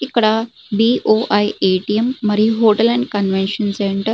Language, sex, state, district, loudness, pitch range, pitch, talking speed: Telugu, female, Andhra Pradesh, Srikakulam, -16 LUFS, 205-225 Hz, 215 Hz, 190 wpm